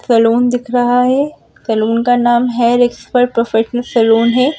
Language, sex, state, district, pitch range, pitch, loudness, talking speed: Hindi, female, Madhya Pradesh, Bhopal, 230-245 Hz, 240 Hz, -13 LUFS, 155 wpm